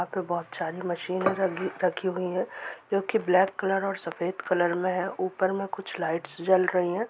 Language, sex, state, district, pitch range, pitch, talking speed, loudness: Hindi, male, Jharkhand, Sahebganj, 175-190 Hz, 185 Hz, 185 wpm, -28 LUFS